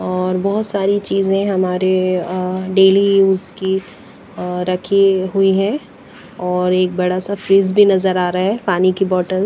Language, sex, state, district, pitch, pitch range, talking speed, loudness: Hindi, female, Punjab, Pathankot, 190 Hz, 185-195 Hz, 160 wpm, -16 LUFS